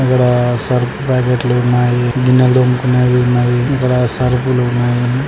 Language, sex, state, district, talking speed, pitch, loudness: Telugu, male, Andhra Pradesh, Guntur, 125 wpm, 125 Hz, -13 LUFS